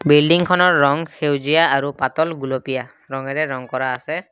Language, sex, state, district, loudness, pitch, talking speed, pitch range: Assamese, male, Assam, Kamrup Metropolitan, -18 LUFS, 140 Hz, 140 wpm, 130-160 Hz